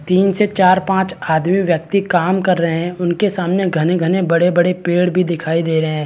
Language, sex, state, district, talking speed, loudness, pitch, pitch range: Hindi, male, Chhattisgarh, Balrampur, 200 wpm, -16 LUFS, 180 Hz, 170-185 Hz